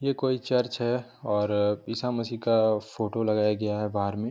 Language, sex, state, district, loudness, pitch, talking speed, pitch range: Hindi, male, Jharkhand, Jamtara, -27 LUFS, 115 Hz, 195 wpm, 105-125 Hz